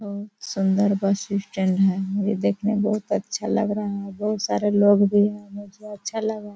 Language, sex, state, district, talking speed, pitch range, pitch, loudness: Hindi, female, Chhattisgarh, Korba, 220 wpm, 200-210 Hz, 205 Hz, -23 LUFS